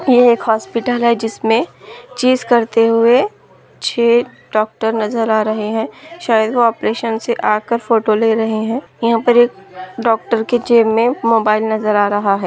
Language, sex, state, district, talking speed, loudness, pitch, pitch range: Hindi, female, Maharashtra, Solapur, 165 wpm, -15 LUFS, 230 Hz, 220-240 Hz